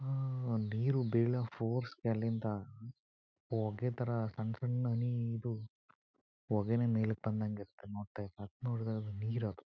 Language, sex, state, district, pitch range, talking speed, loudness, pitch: Kannada, male, Karnataka, Chamarajanagar, 110-120 Hz, 125 wpm, -37 LUFS, 115 Hz